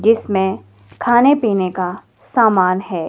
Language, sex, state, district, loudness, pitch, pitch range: Hindi, female, Himachal Pradesh, Shimla, -16 LUFS, 190 Hz, 180-225 Hz